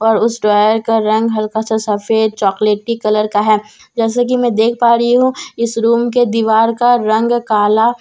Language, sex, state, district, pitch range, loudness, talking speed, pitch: Hindi, female, Bihar, Katihar, 215-235 Hz, -13 LUFS, 210 wpm, 225 Hz